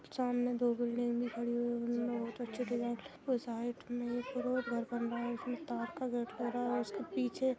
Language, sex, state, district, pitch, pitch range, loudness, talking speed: Hindi, female, Bihar, Sitamarhi, 240 Hz, 235-245 Hz, -37 LUFS, 255 wpm